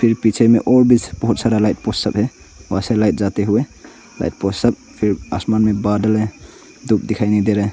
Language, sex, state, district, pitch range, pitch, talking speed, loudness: Hindi, male, Arunachal Pradesh, Longding, 100-115 Hz, 105 Hz, 185 wpm, -17 LUFS